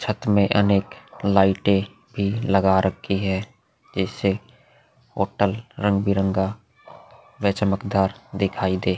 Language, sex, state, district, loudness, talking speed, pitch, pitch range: Hindi, male, Uttar Pradesh, Hamirpur, -22 LUFS, 105 wpm, 100 Hz, 95-105 Hz